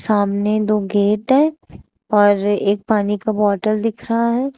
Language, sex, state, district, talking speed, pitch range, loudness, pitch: Hindi, female, Uttar Pradesh, Shamli, 155 wpm, 205-225 Hz, -17 LUFS, 210 Hz